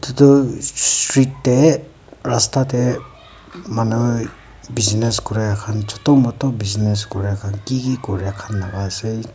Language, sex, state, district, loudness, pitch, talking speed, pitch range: Nagamese, female, Nagaland, Kohima, -18 LUFS, 115 Hz, 120 wpm, 105-130 Hz